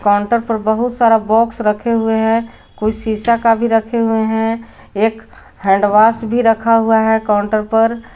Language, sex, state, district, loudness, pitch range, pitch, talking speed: Hindi, female, Jharkhand, Garhwa, -14 LUFS, 220-230 Hz, 225 Hz, 175 wpm